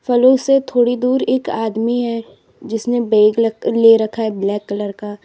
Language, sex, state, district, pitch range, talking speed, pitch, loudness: Hindi, female, Uttar Pradesh, Lalitpur, 215-245 Hz, 170 wpm, 230 Hz, -16 LUFS